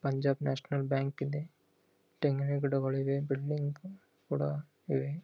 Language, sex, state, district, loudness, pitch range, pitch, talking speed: Kannada, male, Karnataka, Gulbarga, -34 LUFS, 135-145 Hz, 140 Hz, 115 wpm